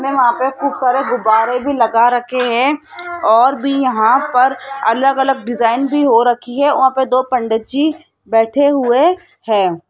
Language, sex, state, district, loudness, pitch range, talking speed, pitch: Hindi, female, Rajasthan, Jaipur, -14 LUFS, 235-275 Hz, 175 wpm, 255 Hz